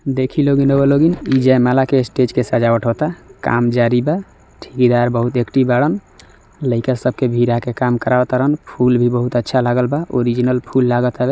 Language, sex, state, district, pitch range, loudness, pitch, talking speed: Maithili, male, Bihar, Samastipur, 120-135 Hz, -16 LUFS, 125 Hz, 190 wpm